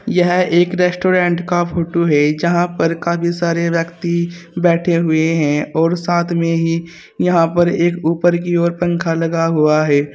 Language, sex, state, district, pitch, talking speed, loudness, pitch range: Hindi, male, Uttar Pradesh, Saharanpur, 170 Hz, 165 wpm, -16 LUFS, 165-175 Hz